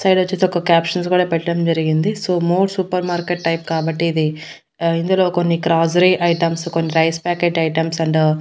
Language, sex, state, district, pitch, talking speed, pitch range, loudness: Telugu, female, Andhra Pradesh, Annamaya, 170 Hz, 180 wpm, 165-180 Hz, -17 LUFS